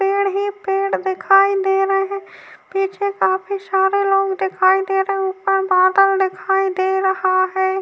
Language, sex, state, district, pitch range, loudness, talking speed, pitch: Hindi, female, Uttar Pradesh, Jyotiba Phule Nagar, 380-390 Hz, -17 LUFS, 160 wpm, 390 Hz